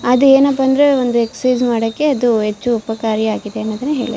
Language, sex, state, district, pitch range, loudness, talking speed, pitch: Kannada, female, Karnataka, Shimoga, 225-265 Hz, -15 LUFS, 160 wpm, 240 Hz